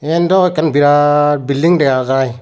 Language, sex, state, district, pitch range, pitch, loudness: Chakma, male, Tripura, Unakoti, 140-160 Hz, 145 Hz, -12 LUFS